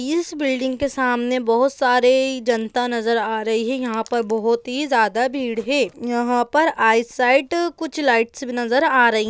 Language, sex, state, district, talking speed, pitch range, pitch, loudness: Hindi, female, Bihar, Gaya, 175 wpm, 235-270 Hz, 250 Hz, -19 LUFS